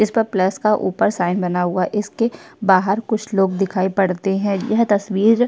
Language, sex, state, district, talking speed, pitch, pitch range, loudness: Hindi, female, Uttar Pradesh, Jyotiba Phule Nagar, 195 wpm, 200 Hz, 190-220 Hz, -19 LUFS